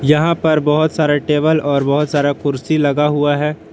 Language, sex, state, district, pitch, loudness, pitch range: Hindi, male, Jharkhand, Palamu, 150 Hz, -15 LUFS, 145-155 Hz